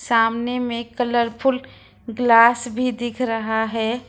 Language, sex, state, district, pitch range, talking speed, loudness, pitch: Hindi, female, Jharkhand, Ranchi, 230-245 Hz, 115 wpm, -20 LUFS, 235 Hz